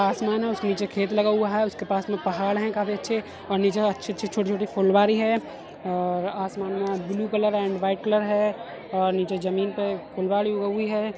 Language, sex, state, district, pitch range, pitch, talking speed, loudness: Hindi, male, Uttar Pradesh, Etah, 195-210 Hz, 200 Hz, 200 wpm, -25 LUFS